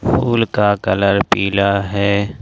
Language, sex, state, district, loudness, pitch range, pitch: Hindi, male, Jharkhand, Ranchi, -16 LUFS, 100-105 Hz, 100 Hz